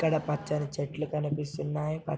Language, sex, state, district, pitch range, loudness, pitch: Telugu, male, Telangana, Nalgonda, 150-155 Hz, -32 LUFS, 150 Hz